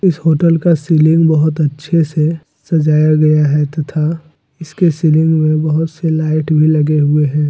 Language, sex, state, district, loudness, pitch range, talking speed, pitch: Hindi, male, Jharkhand, Deoghar, -13 LUFS, 155-160 Hz, 170 wpm, 155 Hz